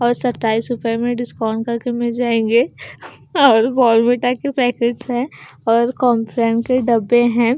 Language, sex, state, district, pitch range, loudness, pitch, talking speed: Hindi, female, Bihar, Katihar, 230-245 Hz, -17 LUFS, 240 Hz, 150 wpm